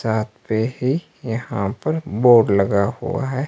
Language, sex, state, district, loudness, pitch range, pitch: Hindi, male, Himachal Pradesh, Shimla, -20 LUFS, 110-135 Hz, 120 Hz